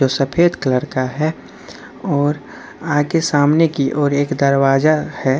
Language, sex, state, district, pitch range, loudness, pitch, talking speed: Hindi, male, Jharkhand, Deoghar, 135-155 Hz, -16 LUFS, 145 Hz, 145 wpm